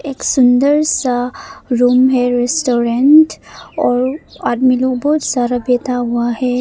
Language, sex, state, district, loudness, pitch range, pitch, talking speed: Hindi, female, Arunachal Pradesh, Papum Pare, -14 LUFS, 245-275 Hz, 250 Hz, 120 wpm